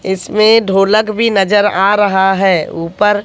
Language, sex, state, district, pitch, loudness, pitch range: Hindi, female, Haryana, Jhajjar, 200 Hz, -12 LUFS, 190-210 Hz